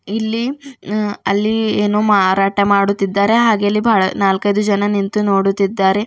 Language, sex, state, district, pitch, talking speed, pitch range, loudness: Kannada, female, Karnataka, Bidar, 205 Hz, 130 wpm, 195-215 Hz, -15 LUFS